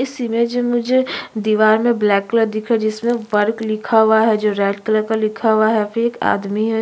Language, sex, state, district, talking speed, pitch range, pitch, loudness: Hindi, female, Chhattisgarh, Kabirdham, 235 wpm, 215-235 Hz, 220 Hz, -17 LUFS